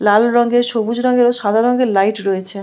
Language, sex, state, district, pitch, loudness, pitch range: Bengali, female, West Bengal, Malda, 225 Hz, -15 LUFS, 205-240 Hz